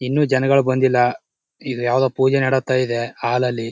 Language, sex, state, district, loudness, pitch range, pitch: Kannada, male, Karnataka, Chamarajanagar, -18 LUFS, 125-130 Hz, 130 Hz